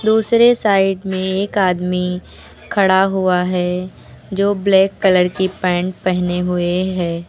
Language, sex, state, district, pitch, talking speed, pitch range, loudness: Hindi, female, Uttar Pradesh, Lucknow, 185 Hz, 130 wpm, 180-195 Hz, -16 LUFS